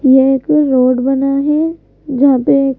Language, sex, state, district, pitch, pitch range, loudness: Hindi, female, Madhya Pradesh, Bhopal, 275 Hz, 265-290 Hz, -12 LUFS